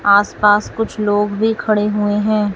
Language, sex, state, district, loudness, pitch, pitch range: Hindi, female, Chhattisgarh, Raipur, -16 LUFS, 210 Hz, 205-215 Hz